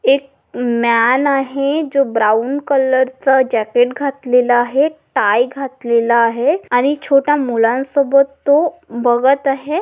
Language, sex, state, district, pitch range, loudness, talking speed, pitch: Marathi, female, Maharashtra, Pune, 240-280 Hz, -15 LUFS, 110 wpm, 265 Hz